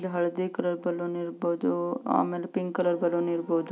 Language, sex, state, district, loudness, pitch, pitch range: Kannada, female, Karnataka, Belgaum, -28 LUFS, 175 Hz, 170-180 Hz